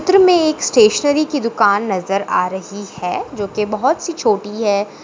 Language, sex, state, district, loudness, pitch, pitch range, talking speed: Hindi, female, Maharashtra, Dhule, -16 LUFS, 215 Hz, 200-305 Hz, 200 wpm